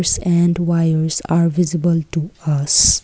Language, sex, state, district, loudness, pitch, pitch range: English, female, Assam, Kamrup Metropolitan, -16 LUFS, 165 Hz, 160-170 Hz